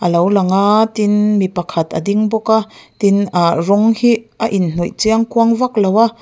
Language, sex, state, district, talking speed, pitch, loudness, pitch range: Mizo, female, Mizoram, Aizawl, 200 wpm, 210 Hz, -14 LUFS, 190-225 Hz